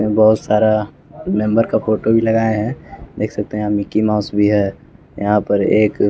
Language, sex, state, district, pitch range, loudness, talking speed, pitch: Hindi, male, Bihar, West Champaran, 105-110 Hz, -16 LUFS, 195 wpm, 105 Hz